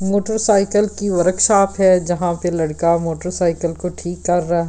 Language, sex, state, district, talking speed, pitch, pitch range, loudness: Hindi, female, Delhi, New Delhi, 140 wpm, 180 Hz, 170-195 Hz, -17 LUFS